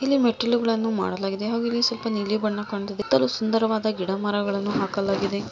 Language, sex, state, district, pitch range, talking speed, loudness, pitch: Kannada, female, Karnataka, Mysore, 200-230 Hz, 150 wpm, -24 LUFS, 210 Hz